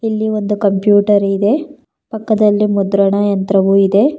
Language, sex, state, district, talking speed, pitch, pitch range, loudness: Kannada, female, Karnataka, Bangalore, 115 wpm, 205 Hz, 200-215 Hz, -13 LUFS